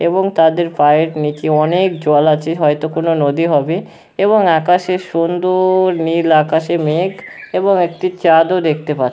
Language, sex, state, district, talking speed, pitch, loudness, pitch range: Bengali, male, West Bengal, Kolkata, 150 wpm, 165 Hz, -14 LUFS, 155-180 Hz